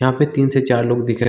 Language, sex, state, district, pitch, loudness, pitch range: Hindi, male, Chhattisgarh, Bilaspur, 130 Hz, -17 LUFS, 120-135 Hz